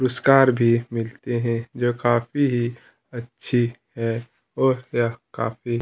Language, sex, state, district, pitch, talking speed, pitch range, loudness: Hindi, male, Chhattisgarh, Kabirdham, 120 Hz, 125 wpm, 115-125 Hz, -22 LUFS